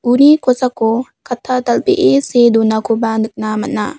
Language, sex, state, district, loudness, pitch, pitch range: Garo, female, Meghalaya, West Garo Hills, -13 LUFS, 235 Hz, 220-255 Hz